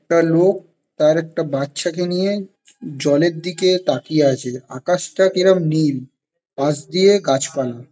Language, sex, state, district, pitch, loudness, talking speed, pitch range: Bengali, male, West Bengal, Jalpaiguri, 165 Hz, -18 LUFS, 150 wpm, 140-180 Hz